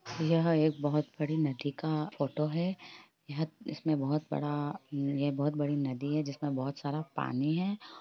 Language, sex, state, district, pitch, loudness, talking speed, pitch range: Hindi, female, Jharkhand, Jamtara, 150 Hz, -33 LUFS, 165 wpm, 145-155 Hz